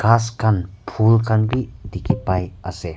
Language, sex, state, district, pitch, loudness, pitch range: Nagamese, male, Nagaland, Kohima, 110 Hz, -20 LUFS, 95-115 Hz